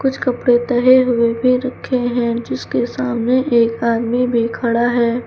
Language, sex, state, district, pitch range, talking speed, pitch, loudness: Hindi, female, Uttar Pradesh, Lucknow, 235-250 Hz, 160 wpm, 245 Hz, -16 LUFS